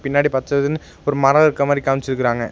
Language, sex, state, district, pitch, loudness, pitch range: Tamil, male, Tamil Nadu, Nilgiris, 140 Hz, -18 LUFS, 130-145 Hz